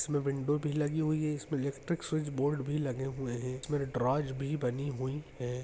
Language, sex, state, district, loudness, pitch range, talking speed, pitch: Hindi, male, Uttarakhand, Uttarkashi, -34 LUFS, 130-150 Hz, 215 wpm, 140 Hz